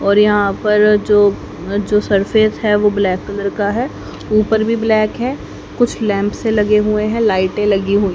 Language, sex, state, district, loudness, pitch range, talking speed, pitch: Hindi, female, Haryana, Jhajjar, -15 LUFS, 200-215 Hz, 185 wpm, 210 Hz